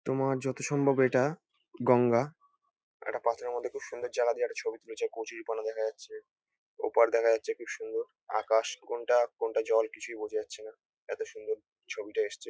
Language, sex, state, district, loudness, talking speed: Bengali, male, West Bengal, North 24 Parganas, -31 LUFS, 165 wpm